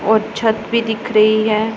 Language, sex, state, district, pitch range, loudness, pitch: Hindi, female, Punjab, Pathankot, 215-225 Hz, -16 LUFS, 220 Hz